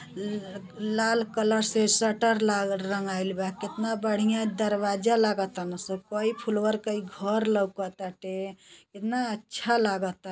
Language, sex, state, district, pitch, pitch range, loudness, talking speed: Bhojpuri, female, Uttar Pradesh, Gorakhpur, 210 Hz, 195-220 Hz, -27 LUFS, 120 wpm